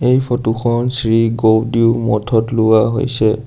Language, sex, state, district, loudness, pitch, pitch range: Assamese, male, Assam, Sonitpur, -15 LUFS, 115 Hz, 110-120 Hz